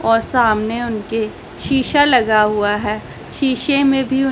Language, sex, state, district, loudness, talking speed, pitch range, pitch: Hindi, female, Punjab, Pathankot, -16 LUFS, 155 wpm, 215-270 Hz, 235 Hz